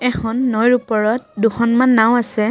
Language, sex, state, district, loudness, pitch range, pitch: Assamese, female, Assam, Kamrup Metropolitan, -16 LUFS, 220-250 Hz, 235 Hz